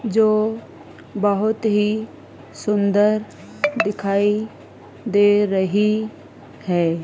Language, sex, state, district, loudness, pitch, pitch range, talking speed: Hindi, female, Madhya Pradesh, Dhar, -20 LUFS, 210 Hz, 205-220 Hz, 70 wpm